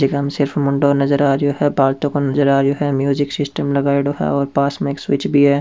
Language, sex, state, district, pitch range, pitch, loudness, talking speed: Rajasthani, male, Rajasthan, Churu, 140-145 Hz, 140 Hz, -17 LUFS, 115 wpm